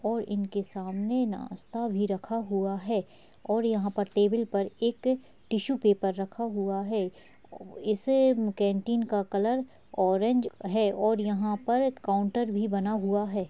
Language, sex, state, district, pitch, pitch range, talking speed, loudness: Hindi, male, Uttar Pradesh, Jalaun, 210 Hz, 200-230 Hz, 145 wpm, -29 LUFS